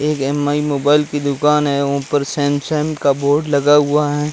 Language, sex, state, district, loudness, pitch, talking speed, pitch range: Hindi, male, Rajasthan, Jaisalmer, -16 LUFS, 145 Hz, 180 wpm, 140-150 Hz